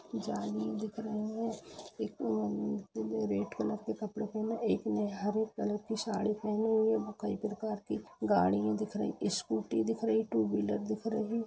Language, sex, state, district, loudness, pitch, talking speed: Hindi, female, Bihar, Gopalganj, -34 LUFS, 200 Hz, 190 wpm